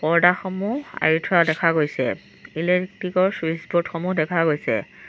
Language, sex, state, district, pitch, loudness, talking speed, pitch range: Assamese, female, Assam, Sonitpur, 170 Hz, -22 LUFS, 130 wpm, 160-185 Hz